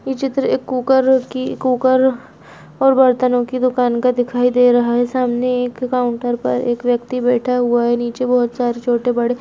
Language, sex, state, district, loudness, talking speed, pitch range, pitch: Hindi, female, Bihar, Muzaffarpur, -16 LUFS, 185 wpm, 240-255 Hz, 250 Hz